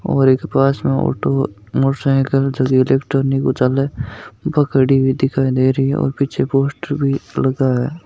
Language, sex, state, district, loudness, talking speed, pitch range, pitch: Hindi, male, Rajasthan, Nagaur, -17 LUFS, 155 wpm, 130-135 Hz, 135 Hz